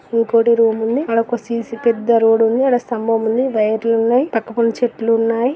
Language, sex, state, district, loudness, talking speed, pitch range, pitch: Telugu, female, Andhra Pradesh, Guntur, -16 LUFS, 185 wpm, 225-240 Hz, 230 Hz